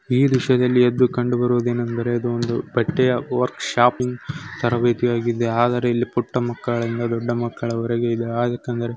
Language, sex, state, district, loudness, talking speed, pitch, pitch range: Kannada, male, Karnataka, Chamarajanagar, -21 LUFS, 135 wpm, 120 Hz, 120-125 Hz